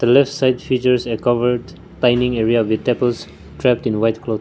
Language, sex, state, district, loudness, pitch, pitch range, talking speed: English, male, Nagaland, Kohima, -18 LUFS, 120 Hz, 110-125 Hz, 175 wpm